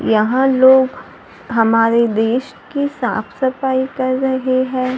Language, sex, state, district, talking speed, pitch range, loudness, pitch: Hindi, female, Maharashtra, Gondia, 120 wpm, 235-260 Hz, -16 LUFS, 255 Hz